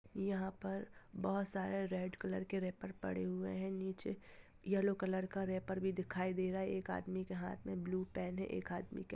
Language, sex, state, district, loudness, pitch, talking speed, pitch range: Hindi, female, Jharkhand, Sahebganj, -41 LUFS, 190 Hz, 215 wpm, 185-195 Hz